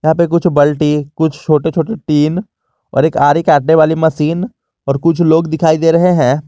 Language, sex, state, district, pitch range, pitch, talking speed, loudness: Hindi, male, Jharkhand, Garhwa, 150-165 Hz, 160 Hz, 195 wpm, -12 LUFS